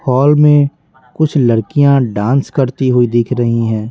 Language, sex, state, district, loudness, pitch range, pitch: Hindi, male, Bihar, Patna, -12 LUFS, 120-145 Hz, 130 Hz